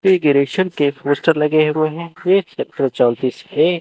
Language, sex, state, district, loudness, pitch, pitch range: Hindi, male, Chandigarh, Chandigarh, -17 LUFS, 155 Hz, 140-180 Hz